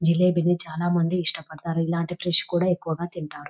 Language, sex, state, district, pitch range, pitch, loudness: Telugu, female, Telangana, Nalgonda, 165-175 Hz, 170 Hz, -24 LUFS